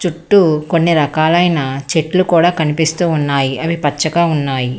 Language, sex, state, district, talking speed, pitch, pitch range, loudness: Telugu, female, Telangana, Hyderabad, 115 wpm, 160 Hz, 145-170 Hz, -14 LUFS